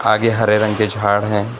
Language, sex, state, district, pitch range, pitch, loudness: Hindi, male, Karnataka, Bangalore, 105-110 Hz, 105 Hz, -16 LUFS